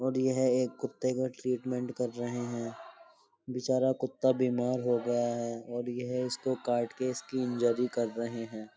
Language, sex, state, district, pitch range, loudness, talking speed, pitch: Hindi, male, Uttar Pradesh, Jyotiba Phule Nagar, 120-130 Hz, -32 LUFS, 170 wpm, 125 Hz